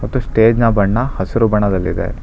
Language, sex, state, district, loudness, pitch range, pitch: Kannada, male, Karnataka, Bangalore, -15 LUFS, 100-115 Hz, 110 Hz